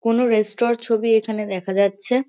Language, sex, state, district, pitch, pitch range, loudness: Bengali, female, West Bengal, Kolkata, 225 Hz, 205-235 Hz, -19 LUFS